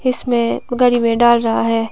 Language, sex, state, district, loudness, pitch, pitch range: Hindi, female, Himachal Pradesh, Shimla, -15 LUFS, 235 Hz, 230-245 Hz